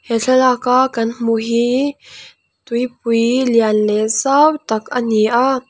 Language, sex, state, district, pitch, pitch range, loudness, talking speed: Mizo, female, Mizoram, Aizawl, 240 Hz, 230-260 Hz, -15 LUFS, 150 wpm